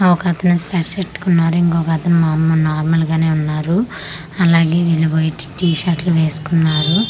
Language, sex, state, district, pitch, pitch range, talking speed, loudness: Telugu, female, Andhra Pradesh, Manyam, 165 Hz, 160-175 Hz, 145 wpm, -16 LUFS